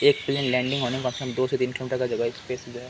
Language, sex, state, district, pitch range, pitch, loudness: Hindi, male, Bihar, Kishanganj, 125-130 Hz, 130 Hz, -26 LUFS